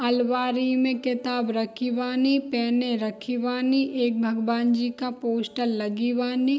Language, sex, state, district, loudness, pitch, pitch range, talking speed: Hindi, female, Bihar, Darbhanga, -25 LUFS, 245 Hz, 235-250 Hz, 135 wpm